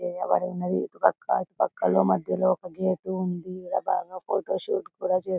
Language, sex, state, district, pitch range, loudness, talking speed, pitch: Telugu, female, Telangana, Karimnagar, 180-185 Hz, -27 LUFS, 190 wpm, 185 Hz